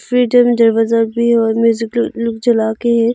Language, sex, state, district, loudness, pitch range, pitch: Hindi, female, Arunachal Pradesh, Longding, -14 LUFS, 225-235 Hz, 230 Hz